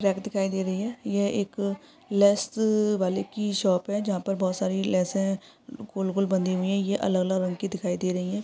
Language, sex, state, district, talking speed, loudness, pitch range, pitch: Hindi, female, Andhra Pradesh, Visakhapatnam, 220 wpm, -26 LUFS, 190-205 Hz, 195 Hz